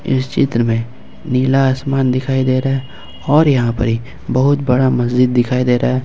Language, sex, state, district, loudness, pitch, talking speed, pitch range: Hindi, male, Jharkhand, Ranchi, -15 LUFS, 130 Hz, 190 wpm, 125-135 Hz